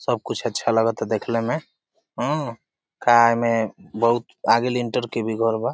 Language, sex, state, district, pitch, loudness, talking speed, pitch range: Bhojpuri, male, Uttar Pradesh, Deoria, 115 Hz, -22 LUFS, 165 wpm, 115-120 Hz